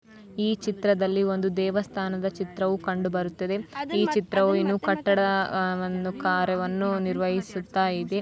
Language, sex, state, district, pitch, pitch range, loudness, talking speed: Kannada, female, Karnataka, Belgaum, 190 Hz, 185-200 Hz, -26 LUFS, 110 wpm